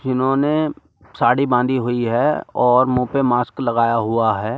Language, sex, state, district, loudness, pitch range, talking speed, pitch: Hindi, male, Delhi, New Delhi, -18 LUFS, 115-130 Hz, 155 wpm, 125 Hz